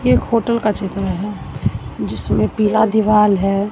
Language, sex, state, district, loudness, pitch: Hindi, female, Bihar, Katihar, -17 LUFS, 195 Hz